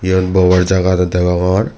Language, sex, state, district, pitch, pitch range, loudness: Chakma, male, Tripura, Dhalai, 90 Hz, 90-95 Hz, -13 LUFS